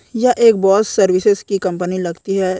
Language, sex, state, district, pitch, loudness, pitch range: Hindi, female, Chhattisgarh, Korba, 195 Hz, -15 LUFS, 185-210 Hz